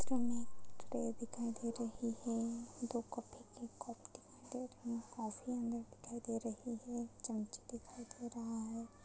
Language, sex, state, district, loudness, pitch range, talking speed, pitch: Hindi, female, Maharashtra, Pune, -44 LUFS, 230-240 Hz, 185 wpm, 235 Hz